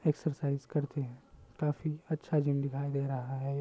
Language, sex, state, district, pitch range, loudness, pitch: Hindi, male, Bihar, Samastipur, 140-150 Hz, -35 LUFS, 145 Hz